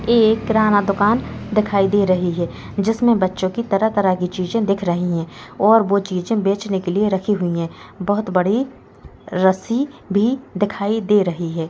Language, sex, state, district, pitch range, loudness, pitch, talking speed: Hindi, female, Bihar, Gopalganj, 185-220 Hz, -19 LUFS, 200 Hz, 180 wpm